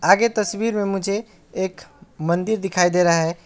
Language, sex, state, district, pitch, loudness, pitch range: Hindi, male, West Bengal, Alipurduar, 195 Hz, -21 LUFS, 175-210 Hz